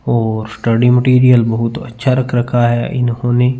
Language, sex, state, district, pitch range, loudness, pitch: Hindi, male, Punjab, Fazilka, 115-125 Hz, -14 LUFS, 120 Hz